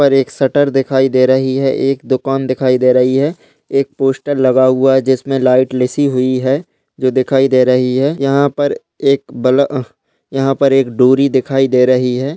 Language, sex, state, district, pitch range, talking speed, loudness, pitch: Hindi, male, Uttarakhand, Uttarkashi, 130-135 Hz, 200 wpm, -13 LUFS, 135 Hz